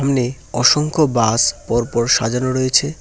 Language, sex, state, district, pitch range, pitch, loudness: Bengali, male, West Bengal, Cooch Behar, 115-140 Hz, 125 Hz, -16 LUFS